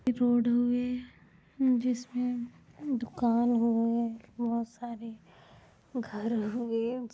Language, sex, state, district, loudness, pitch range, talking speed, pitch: Hindi, female, Uttar Pradesh, Ghazipur, -30 LUFS, 230-245 Hz, 90 wpm, 240 Hz